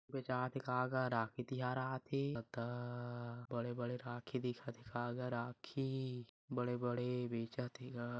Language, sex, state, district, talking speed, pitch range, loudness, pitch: Chhattisgarhi, male, Chhattisgarh, Bilaspur, 145 wpm, 120-130 Hz, -42 LUFS, 125 Hz